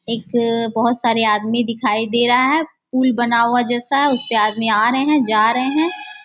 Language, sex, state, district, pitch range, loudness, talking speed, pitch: Hindi, female, Bihar, Bhagalpur, 230-260 Hz, -15 LUFS, 200 wpm, 240 Hz